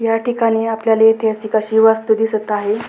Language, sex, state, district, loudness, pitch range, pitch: Marathi, female, Maharashtra, Pune, -15 LUFS, 220-225 Hz, 220 Hz